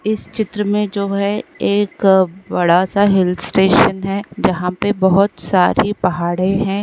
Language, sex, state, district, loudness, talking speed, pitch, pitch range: Hindi, female, Bihar, Jamui, -16 LUFS, 150 wpm, 195 Hz, 185-205 Hz